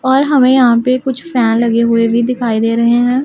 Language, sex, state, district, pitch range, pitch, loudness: Hindi, female, Punjab, Pathankot, 230-260 Hz, 245 Hz, -12 LUFS